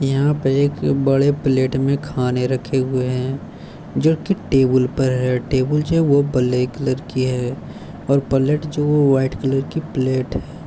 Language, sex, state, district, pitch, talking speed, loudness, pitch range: Hindi, male, Bihar, Bhagalpur, 135 Hz, 175 wpm, -19 LUFS, 130-145 Hz